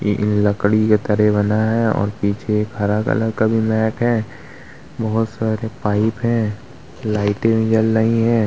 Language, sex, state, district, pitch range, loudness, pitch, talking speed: Hindi, male, Bihar, Vaishali, 105-115 Hz, -18 LUFS, 110 Hz, 170 wpm